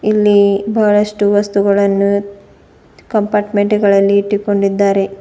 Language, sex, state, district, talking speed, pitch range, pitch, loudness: Kannada, female, Karnataka, Bidar, 70 wpm, 200-210 Hz, 200 Hz, -13 LUFS